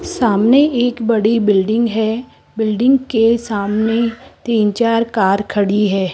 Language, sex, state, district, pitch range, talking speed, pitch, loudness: Hindi, female, Rajasthan, Jaipur, 210-235 Hz, 125 wpm, 225 Hz, -15 LUFS